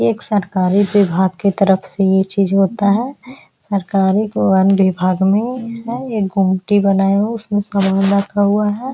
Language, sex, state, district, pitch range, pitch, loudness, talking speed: Hindi, female, Bihar, Araria, 190-210 Hz, 200 Hz, -15 LUFS, 155 wpm